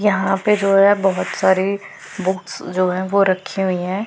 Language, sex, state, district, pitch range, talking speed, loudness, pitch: Hindi, female, Punjab, Pathankot, 185-200 Hz, 190 wpm, -18 LUFS, 195 Hz